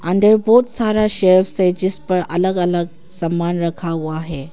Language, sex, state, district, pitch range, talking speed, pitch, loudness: Hindi, female, Arunachal Pradesh, Papum Pare, 170-190 Hz, 170 wpm, 180 Hz, -16 LUFS